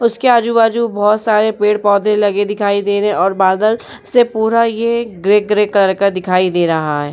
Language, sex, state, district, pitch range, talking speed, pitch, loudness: Hindi, female, Uttar Pradesh, Muzaffarnagar, 200-225 Hz, 210 wpm, 210 Hz, -14 LUFS